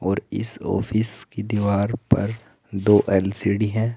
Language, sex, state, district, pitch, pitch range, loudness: Hindi, male, Uttar Pradesh, Saharanpur, 105 Hz, 100-110 Hz, -22 LUFS